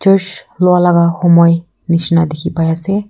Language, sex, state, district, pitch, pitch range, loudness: Nagamese, female, Nagaland, Kohima, 170 Hz, 170-180 Hz, -12 LUFS